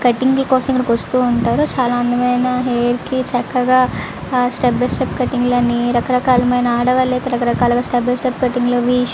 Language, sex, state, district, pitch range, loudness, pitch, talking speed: Telugu, female, Andhra Pradesh, Visakhapatnam, 245-255 Hz, -16 LUFS, 245 Hz, 145 wpm